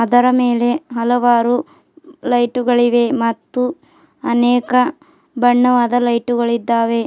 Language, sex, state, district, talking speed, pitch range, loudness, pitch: Kannada, female, Karnataka, Bidar, 70 wpm, 240-250 Hz, -15 LUFS, 245 Hz